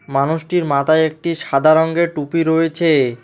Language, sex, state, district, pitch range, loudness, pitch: Bengali, male, West Bengal, Alipurduar, 145-165 Hz, -16 LUFS, 160 Hz